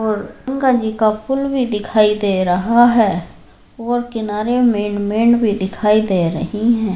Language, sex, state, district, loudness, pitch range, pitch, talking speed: Hindi, female, Uttar Pradesh, Jyotiba Phule Nagar, -16 LUFS, 205-235 Hz, 215 Hz, 155 wpm